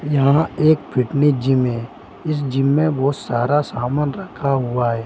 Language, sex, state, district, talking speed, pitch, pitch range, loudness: Hindi, male, Chhattisgarh, Bilaspur, 155 wpm, 140 Hz, 125-150 Hz, -19 LUFS